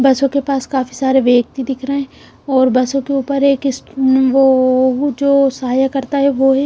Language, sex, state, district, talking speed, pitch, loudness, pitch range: Hindi, female, Punjab, Kapurthala, 190 wpm, 270 Hz, -14 LUFS, 260-275 Hz